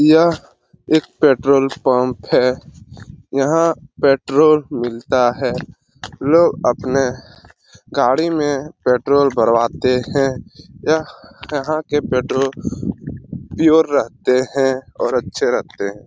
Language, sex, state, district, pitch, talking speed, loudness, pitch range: Hindi, male, Jharkhand, Jamtara, 135 Hz, 100 wpm, -17 LUFS, 125-155 Hz